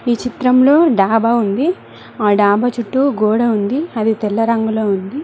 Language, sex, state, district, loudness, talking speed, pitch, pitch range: Telugu, female, Telangana, Mahabubabad, -15 LUFS, 150 wpm, 230 Hz, 215-255 Hz